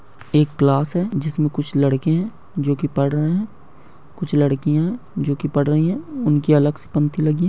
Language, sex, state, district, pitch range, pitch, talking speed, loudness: Hindi, male, Bihar, Bhagalpur, 145-170 Hz, 150 Hz, 190 wpm, -19 LUFS